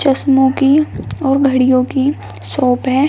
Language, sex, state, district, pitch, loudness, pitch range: Hindi, female, Uttar Pradesh, Shamli, 270 Hz, -14 LUFS, 260-275 Hz